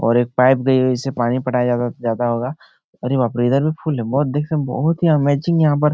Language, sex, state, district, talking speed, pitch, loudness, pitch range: Hindi, male, Bihar, Supaul, 250 wpm, 130 Hz, -18 LUFS, 120-150 Hz